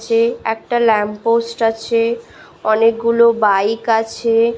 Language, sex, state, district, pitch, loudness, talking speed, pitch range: Bengali, female, West Bengal, Malda, 230 Hz, -16 LUFS, 105 wpm, 225-230 Hz